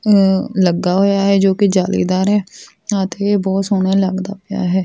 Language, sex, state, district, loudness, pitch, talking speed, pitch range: Punjabi, female, Punjab, Fazilka, -15 LUFS, 195 Hz, 160 wpm, 190-200 Hz